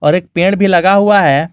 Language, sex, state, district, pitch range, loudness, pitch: Hindi, male, Jharkhand, Garhwa, 165-200 Hz, -10 LUFS, 180 Hz